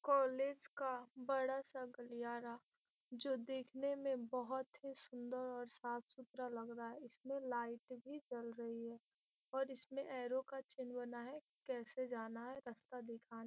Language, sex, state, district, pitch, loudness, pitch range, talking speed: Hindi, female, Bihar, Gopalganj, 255 Hz, -46 LUFS, 240-270 Hz, 160 wpm